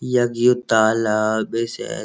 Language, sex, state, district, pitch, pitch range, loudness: Garhwali, male, Uttarakhand, Uttarkashi, 115 Hz, 110-120 Hz, -19 LUFS